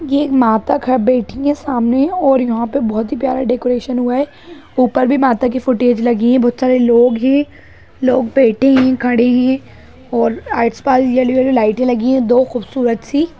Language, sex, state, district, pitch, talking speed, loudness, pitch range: Hindi, female, Bihar, Jahanabad, 255 Hz, 190 wpm, -14 LUFS, 245-270 Hz